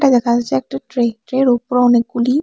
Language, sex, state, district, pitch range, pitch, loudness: Bengali, female, Tripura, West Tripura, 235-255 Hz, 240 Hz, -16 LUFS